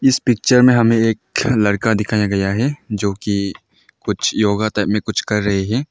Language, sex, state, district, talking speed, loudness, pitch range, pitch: Hindi, male, Arunachal Pradesh, Longding, 195 wpm, -17 LUFS, 100-120 Hz, 110 Hz